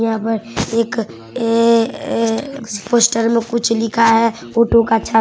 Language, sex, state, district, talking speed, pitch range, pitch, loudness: Hindi, female, Bihar, Samastipur, 160 wpm, 225-230 Hz, 230 Hz, -16 LUFS